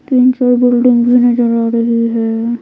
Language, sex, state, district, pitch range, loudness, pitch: Hindi, female, Bihar, Patna, 230-245 Hz, -12 LUFS, 240 Hz